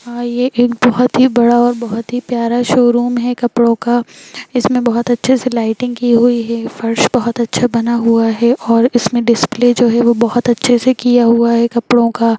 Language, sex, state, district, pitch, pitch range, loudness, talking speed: Hindi, female, Bihar, Jahanabad, 240 Hz, 235-245 Hz, -13 LUFS, 205 wpm